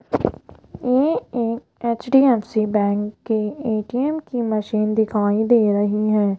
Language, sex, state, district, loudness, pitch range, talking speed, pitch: Hindi, female, Rajasthan, Jaipur, -20 LUFS, 210-240 Hz, 115 wpm, 220 Hz